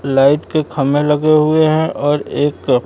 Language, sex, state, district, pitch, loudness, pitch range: Hindi, male, Bihar, Kaimur, 150 Hz, -14 LUFS, 140-155 Hz